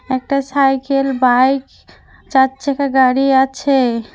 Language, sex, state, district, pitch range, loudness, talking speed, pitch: Bengali, female, West Bengal, Cooch Behar, 260-275 Hz, -15 LUFS, 100 wpm, 265 Hz